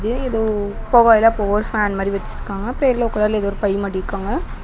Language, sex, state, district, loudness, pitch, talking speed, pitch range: Tamil, female, Tamil Nadu, Namakkal, -18 LUFS, 210 Hz, 105 wpm, 200-230 Hz